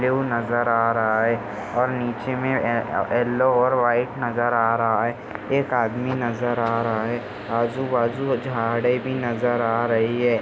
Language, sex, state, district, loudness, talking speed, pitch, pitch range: Hindi, male, Maharashtra, Solapur, -22 LUFS, 175 wpm, 120 Hz, 115-125 Hz